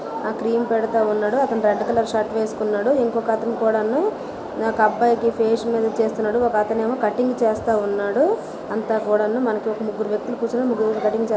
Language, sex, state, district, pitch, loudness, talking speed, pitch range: Telugu, female, Telangana, Nalgonda, 225 Hz, -21 LUFS, 115 wpm, 215-230 Hz